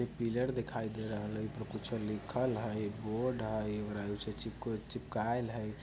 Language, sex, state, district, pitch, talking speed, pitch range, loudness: Bajjika, male, Bihar, Vaishali, 110 Hz, 175 wpm, 105-120 Hz, -38 LUFS